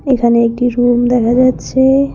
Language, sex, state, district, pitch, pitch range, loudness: Bengali, female, West Bengal, Cooch Behar, 245 Hz, 240-260 Hz, -12 LUFS